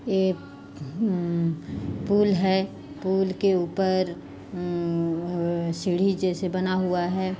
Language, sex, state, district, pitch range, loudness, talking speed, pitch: Hindi, female, Chhattisgarh, Jashpur, 170-190 Hz, -25 LUFS, 105 wpm, 185 Hz